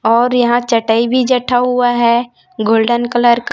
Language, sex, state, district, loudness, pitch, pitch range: Hindi, female, Chhattisgarh, Raipur, -13 LUFS, 240 Hz, 235-245 Hz